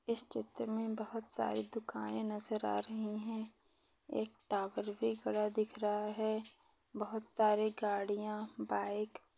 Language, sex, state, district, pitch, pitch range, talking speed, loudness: Hindi, female, Maharashtra, Pune, 215 Hz, 205-220 Hz, 140 wpm, -39 LUFS